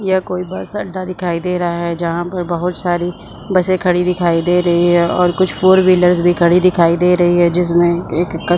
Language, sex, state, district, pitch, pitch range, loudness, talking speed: Hindi, female, Chhattisgarh, Bilaspur, 175 Hz, 170-180 Hz, -15 LUFS, 225 wpm